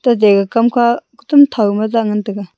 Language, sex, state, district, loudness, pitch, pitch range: Wancho, female, Arunachal Pradesh, Longding, -13 LUFS, 230 Hz, 210-245 Hz